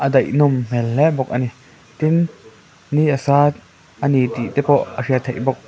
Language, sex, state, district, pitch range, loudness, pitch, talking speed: Mizo, male, Mizoram, Aizawl, 125-145 Hz, -18 LUFS, 130 Hz, 190 wpm